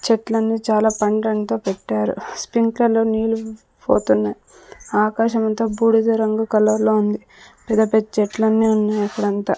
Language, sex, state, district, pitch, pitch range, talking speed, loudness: Telugu, female, Andhra Pradesh, Sri Satya Sai, 220 Hz, 210-225 Hz, 120 wpm, -19 LUFS